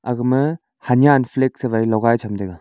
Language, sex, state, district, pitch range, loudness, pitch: Wancho, male, Arunachal Pradesh, Longding, 110-130 Hz, -18 LUFS, 125 Hz